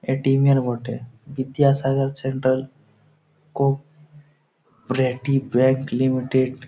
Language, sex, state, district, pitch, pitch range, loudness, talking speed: Bengali, male, West Bengal, Jhargram, 135 Hz, 130-140 Hz, -21 LUFS, 100 wpm